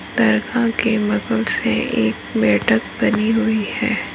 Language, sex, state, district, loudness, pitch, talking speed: Hindi, female, Rajasthan, Nagaur, -18 LUFS, 210 Hz, 60 wpm